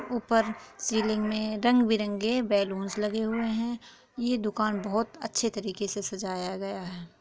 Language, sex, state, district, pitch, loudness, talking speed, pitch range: Hindi, female, Chhattisgarh, Korba, 215 Hz, -29 LUFS, 140 wpm, 200-230 Hz